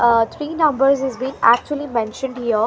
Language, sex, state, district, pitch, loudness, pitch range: English, female, Haryana, Rohtak, 265 Hz, -18 LUFS, 235-285 Hz